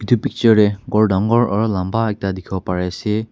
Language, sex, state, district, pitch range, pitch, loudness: Nagamese, male, Nagaland, Kohima, 95-115 Hz, 105 Hz, -18 LUFS